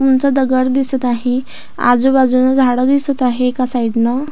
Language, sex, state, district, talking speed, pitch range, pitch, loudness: Marathi, female, Maharashtra, Aurangabad, 155 wpm, 250-265 Hz, 255 Hz, -14 LUFS